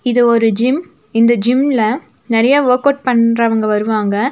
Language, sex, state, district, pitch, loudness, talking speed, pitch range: Tamil, female, Tamil Nadu, Nilgiris, 235 Hz, -14 LUFS, 140 wpm, 225-260 Hz